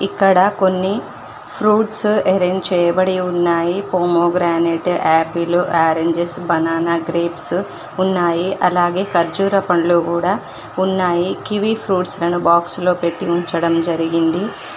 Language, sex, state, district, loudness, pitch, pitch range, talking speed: Telugu, female, Telangana, Mahabubabad, -16 LUFS, 175 Hz, 170-190 Hz, 100 wpm